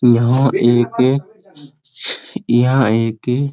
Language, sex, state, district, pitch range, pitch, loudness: Hindi, male, Jharkhand, Sahebganj, 120-140 Hz, 125 Hz, -16 LUFS